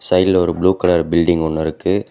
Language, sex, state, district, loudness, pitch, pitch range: Tamil, male, Tamil Nadu, Kanyakumari, -16 LUFS, 85 Hz, 80-90 Hz